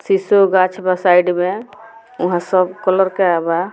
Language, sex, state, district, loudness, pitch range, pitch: Bhojpuri, female, Bihar, Muzaffarpur, -15 LUFS, 180-200 Hz, 185 Hz